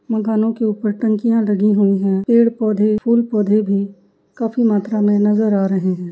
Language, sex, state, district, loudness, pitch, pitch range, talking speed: Hindi, female, Uttar Pradesh, Jyotiba Phule Nagar, -16 LUFS, 215 Hz, 205-225 Hz, 205 wpm